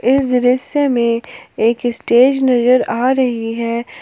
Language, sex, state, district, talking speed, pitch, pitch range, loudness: Hindi, female, Jharkhand, Palamu, 135 wpm, 245 Hz, 235-260 Hz, -15 LUFS